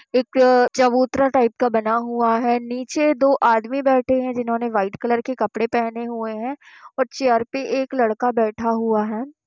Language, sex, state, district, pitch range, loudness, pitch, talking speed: Hindi, female, Bihar, Sitamarhi, 230-260 Hz, -20 LUFS, 245 Hz, 175 wpm